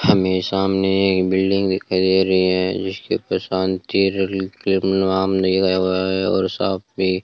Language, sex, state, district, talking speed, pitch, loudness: Hindi, male, Rajasthan, Bikaner, 160 wpm, 95 Hz, -19 LUFS